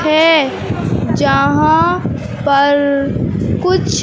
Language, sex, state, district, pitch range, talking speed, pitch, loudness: Hindi, male, Madhya Pradesh, Katni, 280-320 Hz, 60 wpm, 295 Hz, -14 LUFS